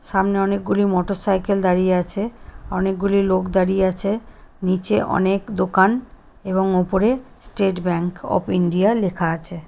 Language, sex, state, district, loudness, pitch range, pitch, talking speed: Bengali, female, West Bengal, Kolkata, -19 LUFS, 185-200 Hz, 190 Hz, 135 wpm